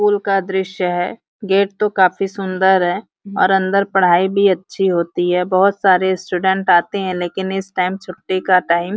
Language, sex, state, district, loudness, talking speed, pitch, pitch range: Hindi, female, Uttar Pradesh, Varanasi, -16 LUFS, 185 wpm, 190 Hz, 180-195 Hz